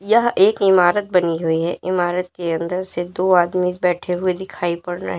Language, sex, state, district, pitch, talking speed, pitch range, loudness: Hindi, female, Uttar Pradesh, Lalitpur, 180 Hz, 210 wpm, 175-185 Hz, -19 LUFS